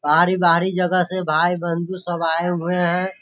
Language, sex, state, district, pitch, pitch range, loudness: Hindi, male, Bihar, Sitamarhi, 175 Hz, 170-185 Hz, -19 LUFS